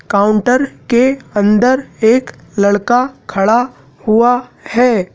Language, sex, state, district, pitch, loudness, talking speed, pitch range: Hindi, male, Madhya Pradesh, Dhar, 235 Hz, -13 LUFS, 95 wpm, 205-250 Hz